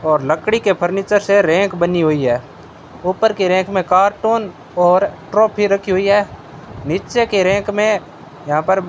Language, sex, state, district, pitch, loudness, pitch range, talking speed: Hindi, male, Rajasthan, Bikaner, 195 Hz, -16 LUFS, 175-205 Hz, 170 wpm